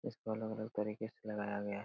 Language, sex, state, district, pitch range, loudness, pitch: Hindi, male, Bihar, Jamui, 105-110 Hz, -41 LUFS, 105 Hz